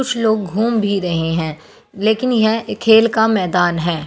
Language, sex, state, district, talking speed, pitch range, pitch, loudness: Hindi, female, Bihar, Begusarai, 175 wpm, 175-225 Hz, 215 Hz, -16 LUFS